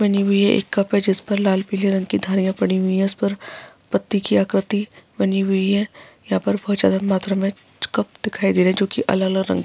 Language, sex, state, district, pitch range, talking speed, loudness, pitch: Hindi, female, Bihar, Araria, 190-200 Hz, 255 wpm, -20 LUFS, 195 Hz